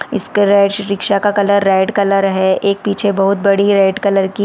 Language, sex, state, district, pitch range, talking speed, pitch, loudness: Hindi, female, Chhattisgarh, Balrampur, 195-205 Hz, 200 wpm, 200 Hz, -13 LUFS